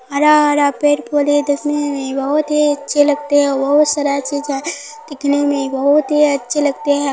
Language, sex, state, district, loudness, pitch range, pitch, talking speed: Maithili, female, Bihar, Supaul, -15 LUFS, 285-295 Hz, 290 Hz, 160 wpm